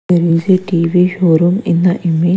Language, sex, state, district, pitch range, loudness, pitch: English, female, Punjab, Kapurthala, 170-180 Hz, -13 LUFS, 175 Hz